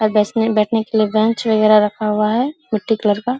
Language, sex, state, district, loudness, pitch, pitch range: Hindi, female, Bihar, Araria, -16 LUFS, 215 Hz, 215-225 Hz